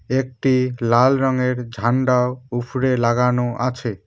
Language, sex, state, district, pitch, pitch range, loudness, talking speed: Bengali, male, West Bengal, Cooch Behar, 125 Hz, 120-130 Hz, -19 LUFS, 105 wpm